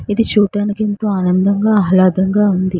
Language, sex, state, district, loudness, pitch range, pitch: Telugu, female, Andhra Pradesh, Srikakulam, -14 LUFS, 185-210 Hz, 205 Hz